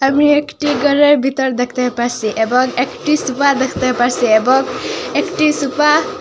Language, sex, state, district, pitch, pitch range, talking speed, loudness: Bengali, female, Assam, Hailakandi, 265 Hz, 250-290 Hz, 145 wpm, -15 LUFS